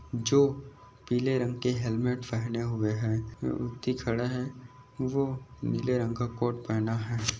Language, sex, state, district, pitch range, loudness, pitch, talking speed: Hindi, male, Maharashtra, Aurangabad, 115-125 Hz, -30 LUFS, 120 Hz, 155 wpm